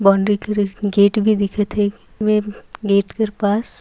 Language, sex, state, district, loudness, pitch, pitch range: Sadri, female, Chhattisgarh, Jashpur, -18 LUFS, 205 Hz, 200-215 Hz